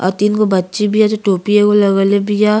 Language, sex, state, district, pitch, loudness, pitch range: Bhojpuri, female, Uttar Pradesh, Ghazipur, 205 Hz, -13 LUFS, 195-210 Hz